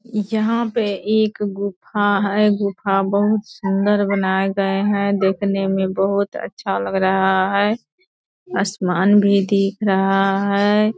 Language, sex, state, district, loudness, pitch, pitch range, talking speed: Hindi, female, Bihar, Purnia, -18 LUFS, 200 Hz, 195-210 Hz, 125 wpm